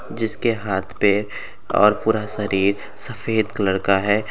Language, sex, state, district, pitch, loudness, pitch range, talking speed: Bhojpuri, male, Uttar Pradesh, Gorakhpur, 105 Hz, -20 LUFS, 100-110 Hz, 140 wpm